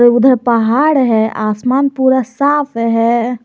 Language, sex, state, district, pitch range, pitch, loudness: Hindi, male, Jharkhand, Garhwa, 230-265 Hz, 245 Hz, -13 LUFS